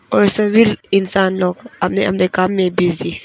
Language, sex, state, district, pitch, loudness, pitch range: Hindi, female, Arunachal Pradesh, Papum Pare, 190 Hz, -15 LUFS, 185-205 Hz